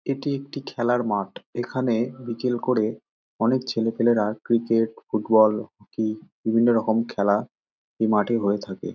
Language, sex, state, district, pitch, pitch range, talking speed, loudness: Bengali, male, West Bengal, Dakshin Dinajpur, 115 Hz, 110-120 Hz, 120 wpm, -24 LUFS